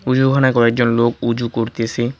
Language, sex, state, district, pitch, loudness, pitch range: Bengali, male, West Bengal, Cooch Behar, 120 Hz, -16 LUFS, 115-130 Hz